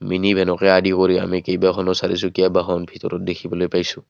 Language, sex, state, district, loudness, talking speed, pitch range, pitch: Assamese, male, Assam, Kamrup Metropolitan, -19 LUFS, 160 wpm, 90-95 Hz, 95 Hz